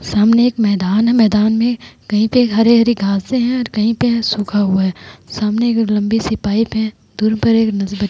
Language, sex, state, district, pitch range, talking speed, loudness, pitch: Hindi, female, Bihar, Vaishali, 210-230 Hz, 195 wpm, -15 LUFS, 220 Hz